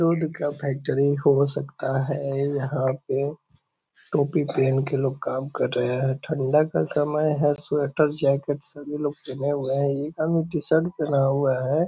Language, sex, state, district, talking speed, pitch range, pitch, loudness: Hindi, male, Bihar, Purnia, 160 wpm, 135-150 Hz, 145 Hz, -24 LUFS